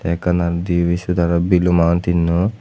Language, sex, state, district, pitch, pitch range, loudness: Chakma, male, Tripura, West Tripura, 85 Hz, 85-90 Hz, -17 LUFS